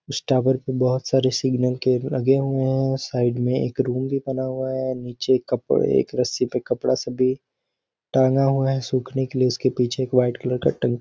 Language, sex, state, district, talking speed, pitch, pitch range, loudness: Hindi, male, Bihar, Sitamarhi, 220 wpm, 130 Hz, 125-135 Hz, -22 LUFS